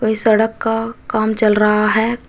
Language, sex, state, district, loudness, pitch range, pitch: Hindi, female, Uttar Pradesh, Shamli, -16 LUFS, 215-225 Hz, 220 Hz